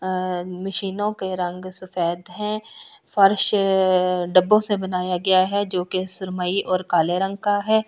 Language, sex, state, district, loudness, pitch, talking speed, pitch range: Hindi, female, Delhi, New Delhi, -21 LUFS, 185 Hz, 150 wpm, 180-205 Hz